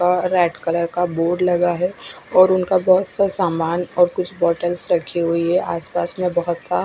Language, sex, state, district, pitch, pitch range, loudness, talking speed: Hindi, female, Odisha, Khordha, 175 Hz, 170-185 Hz, -19 LUFS, 165 wpm